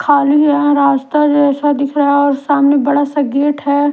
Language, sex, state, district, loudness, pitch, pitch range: Hindi, female, Bihar, Katihar, -12 LUFS, 285 Hz, 280-290 Hz